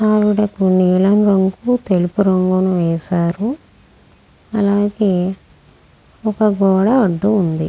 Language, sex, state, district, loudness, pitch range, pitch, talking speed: Telugu, female, Andhra Pradesh, Krishna, -16 LUFS, 185-210 Hz, 195 Hz, 85 wpm